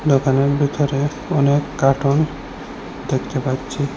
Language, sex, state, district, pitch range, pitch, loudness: Bengali, male, Assam, Hailakandi, 135-145 Hz, 140 Hz, -19 LUFS